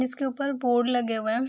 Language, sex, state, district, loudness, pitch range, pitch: Hindi, female, Bihar, Saharsa, -26 LUFS, 240-265 Hz, 245 Hz